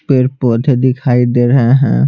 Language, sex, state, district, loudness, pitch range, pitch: Hindi, male, Bihar, Patna, -12 LUFS, 125-135 Hz, 130 Hz